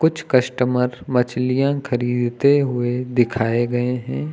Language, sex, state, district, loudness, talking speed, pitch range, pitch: Hindi, male, Uttar Pradesh, Lucknow, -20 LUFS, 110 wpm, 120-130 Hz, 125 Hz